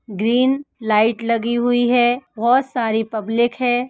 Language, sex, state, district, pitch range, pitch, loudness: Hindi, female, Uttar Pradesh, Etah, 225-245 Hz, 240 Hz, -18 LUFS